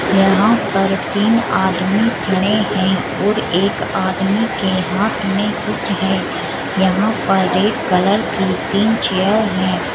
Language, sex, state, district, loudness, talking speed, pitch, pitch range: Hindi, female, Uttar Pradesh, Etah, -16 LUFS, 125 wpm, 195 Hz, 190-210 Hz